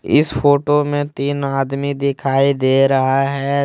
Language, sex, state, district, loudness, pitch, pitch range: Hindi, male, Jharkhand, Deoghar, -16 LUFS, 140 Hz, 135-145 Hz